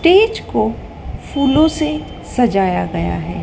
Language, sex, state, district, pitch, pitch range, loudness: Hindi, female, Madhya Pradesh, Dhar, 280 Hz, 190-315 Hz, -16 LUFS